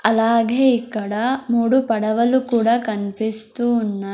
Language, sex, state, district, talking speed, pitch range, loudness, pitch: Telugu, female, Andhra Pradesh, Sri Satya Sai, 85 wpm, 220-240 Hz, -19 LUFS, 230 Hz